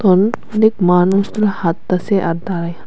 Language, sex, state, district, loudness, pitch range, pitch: Bengali, female, Tripura, West Tripura, -16 LUFS, 180-205 Hz, 190 Hz